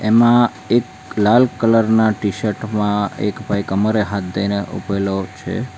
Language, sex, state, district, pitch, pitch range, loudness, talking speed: Gujarati, male, Gujarat, Valsad, 105 Hz, 100-115 Hz, -17 LUFS, 145 wpm